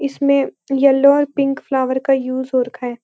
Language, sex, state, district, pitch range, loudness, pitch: Hindi, female, Uttarakhand, Uttarkashi, 260-280 Hz, -17 LUFS, 270 Hz